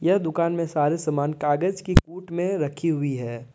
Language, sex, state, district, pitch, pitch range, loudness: Hindi, male, Jharkhand, Deoghar, 160 Hz, 145-175 Hz, -24 LUFS